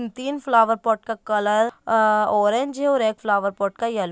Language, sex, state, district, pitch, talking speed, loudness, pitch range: Hindi, female, Bihar, Jahanabad, 220 Hz, 205 wpm, -21 LUFS, 210-230 Hz